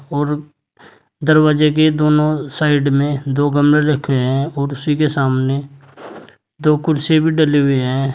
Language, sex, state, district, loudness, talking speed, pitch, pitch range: Hindi, male, Uttar Pradesh, Saharanpur, -16 LUFS, 145 wpm, 145 Hz, 140-150 Hz